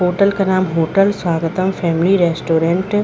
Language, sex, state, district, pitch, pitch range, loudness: Hindi, female, Chhattisgarh, Rajnandgaon, 180 Hz, 165-195 Hz, -16 LUFS